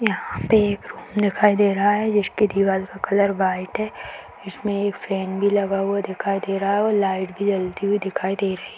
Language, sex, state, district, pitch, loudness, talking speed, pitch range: Hindi, female, Bihar, Jahanabad, 200 Hz, -21 LUFS, 225 wpm, 195-205 Hz